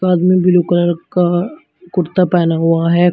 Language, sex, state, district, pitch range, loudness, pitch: Hindi, male, Uttar Pradesh, Shamli, 175-180 Hz, -14 LUFS, 175 Hz